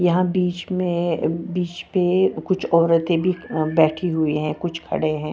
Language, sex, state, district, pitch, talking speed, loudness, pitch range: Hindi, female, Bihar, Patna, 170 Hz, 160 wpm, -21 LUFS, 160-180 Hz